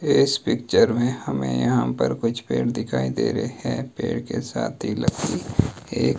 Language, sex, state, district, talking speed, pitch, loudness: Hindi, male, Himachal Pradesh, Shimla, 175 wpm, 115 Hz, -23 LUFS